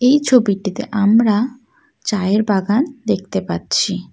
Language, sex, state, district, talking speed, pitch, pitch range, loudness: Bengali, female, West Bengal, Alipurduar, 100 wpm, 215 Hz, 200-250 Hz, -17 LUFS